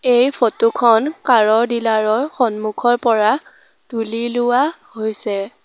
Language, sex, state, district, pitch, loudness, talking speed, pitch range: Assamese, female, Assam, Sonitpur, 235 Hz, -17 LUFS, 125 wpm, 220-245 Hz